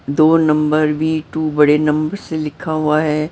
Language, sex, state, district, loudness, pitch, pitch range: Hindi, female, Maharashtra, Mumbai Suburban, -16 LUFS, 155 Hz, 150-155 Hz